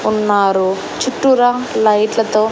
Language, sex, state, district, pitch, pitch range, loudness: Telugu, female, Andhra Pradesh, Annamaya, 215 Hz, 205-230 Hz, -14 LUFS